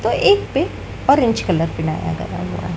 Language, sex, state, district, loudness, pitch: Hindi, female, Madhya Pradesh, Dhar, -18 LUFS, 155 Hz